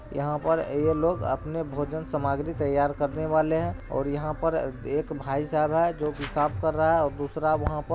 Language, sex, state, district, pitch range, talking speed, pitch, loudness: Hindi, male, Bihar, Araria, 145-160 Hz, 210 wpm, 150 Hz, -27 LUFS